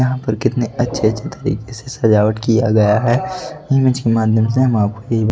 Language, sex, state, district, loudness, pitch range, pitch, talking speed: Hindi, male, Delhi, New Delhi, -16 LUFS, 110-130 Hz, 115 Hz, 190 wpm